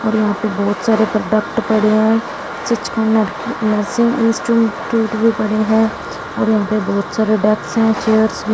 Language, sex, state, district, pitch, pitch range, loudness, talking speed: Hindi, female, Punjab, Fazilka, 220 Hz, 215-225 Hz, -16 LUFS, 185 wpm